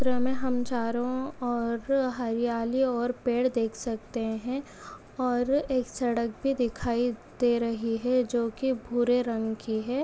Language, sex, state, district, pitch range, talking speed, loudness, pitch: Hindi, female, Goa, North and South Goa, 230-255 Hz, 150 wpm, -28 LUFS, 245 Hz